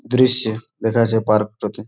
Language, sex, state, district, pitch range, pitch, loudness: Bengali, male, West Bengal, Malda, 110-120 Hz, 110 Hz, -17 LUFS